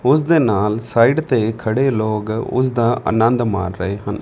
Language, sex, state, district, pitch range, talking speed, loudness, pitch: Punjabi, male, Punjab, Fazilka, 105-125 Hz, 155 wpm, -17 LUFS, 115 Hz